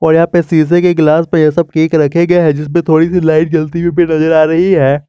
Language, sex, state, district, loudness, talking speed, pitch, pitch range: Hindi, male, Jharkhand, Garhwa, -10 LUFS, 295 wpm, 165 Hz, 155-170 Hz